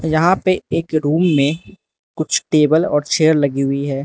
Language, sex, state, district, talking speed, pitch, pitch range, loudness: Hindi, male, Arunachal Pradesh, Lower Dibang Valley, 180 wpm, 155 Hz, 145-165 Hz, -16 LUFS